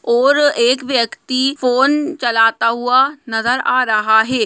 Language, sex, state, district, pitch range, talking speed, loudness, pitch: Hindi, female, Bihar, Gaya, 230-270 Hz, 135 wpm, -15 LUFS, 250 Hz